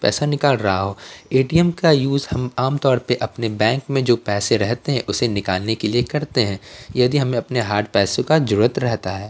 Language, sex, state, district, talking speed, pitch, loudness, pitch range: Hindi, male, Bihar, Patna, 205 wpm, 120 Hz, -19 LUFS, 105-135 Hz